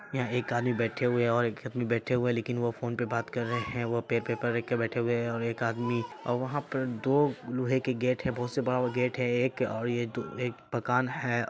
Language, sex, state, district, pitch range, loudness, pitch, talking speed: Hindi, male, Bihar, Saharsa, 120-125 Hz, -30 LUFS, 120 Hz, 255 wpm